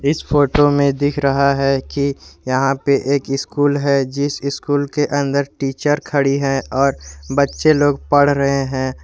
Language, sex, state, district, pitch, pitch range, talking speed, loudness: Hindi, male, Jharkhand, Garhwa, 140 Hz, 135-145 Hz, 165 wpm, -17 LUFS